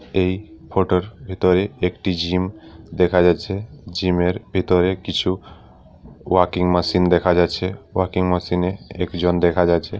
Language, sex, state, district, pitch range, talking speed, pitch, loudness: Bengali, male, West Bengal, Paschim Medinipur, 90-95 Hz, 115 wpm, 90 Hz, -20 LUFS